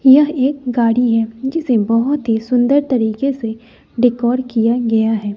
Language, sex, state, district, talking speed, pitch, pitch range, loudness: Hindi, female, Bihar, West Champaran, 155 wpm, 240 Hz, 225-265 Hz, -16 LUFS